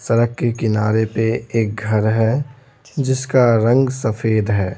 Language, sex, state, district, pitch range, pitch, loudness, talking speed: Hindi, male, Bihar, Patna, 110-130 Hz, 115 Hz, -18 LUFS, 140 wpm